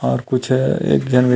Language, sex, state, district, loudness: Chhattisgarhi, male, Chhattisgarh, Rajnandgaon, -17 LUFS